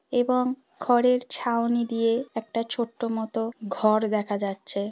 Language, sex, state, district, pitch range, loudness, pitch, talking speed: Bengali, female, West Bengal, Dakshin Dinajpur, 220-245 Hz, -26 LUFS, 230 Hz, 120 wpm